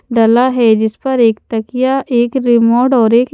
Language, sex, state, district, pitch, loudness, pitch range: Hindi, female, Haryana, Charkhi Dadri, 240 Hz, -12 LUFS, 225-255 Hz